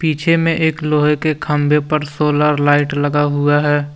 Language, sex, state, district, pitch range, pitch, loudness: Hindi, male, Jharkhand, Deoghar, 145-155 Hz, 150 Hz, -15 LUFS